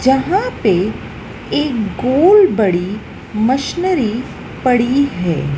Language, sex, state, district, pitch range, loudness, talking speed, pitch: Hindi, female, Madhya Pradesh, Dhar, 210-295 Hz, -15 LUFS, 85 wpm, 255 Hz